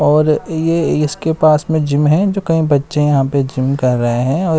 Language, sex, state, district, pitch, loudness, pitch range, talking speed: Hindi, male, Bihar, West Champaran, 150 Hz, -14 LUFS, 140-160 Hz, 210 wpm